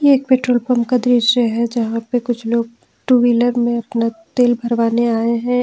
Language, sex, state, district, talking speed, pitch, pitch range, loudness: Hindi, female, Jharkhand, Ranchi, 200 wpm, 240 Hz, 235-245 Hz, -16 LUFS